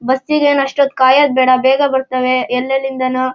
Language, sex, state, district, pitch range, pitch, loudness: Kannada, male, Karnataka, Shimoga, 255-275 Hz, 260 Hz, -13 LUFS